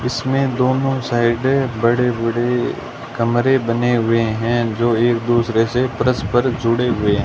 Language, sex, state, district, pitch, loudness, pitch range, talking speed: Hindi, male, Rajasthan, Bikaner, 120 Hz, -17 LUFS, 115-125 Hz, 130 wpm